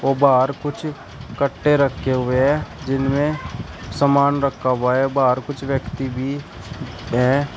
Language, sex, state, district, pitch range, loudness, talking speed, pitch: Hindi, male, Uttar Pradesh, Shamli, 130-140 Hz, -20 LUFS, 125 wpm, 135 Hz